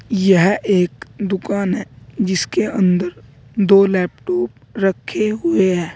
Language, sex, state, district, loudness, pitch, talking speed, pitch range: Hindi, male, Uttar Pradesh, Saharanpur, -17 LUFS, 190 Hz, 110 wpm, 180-200 Hz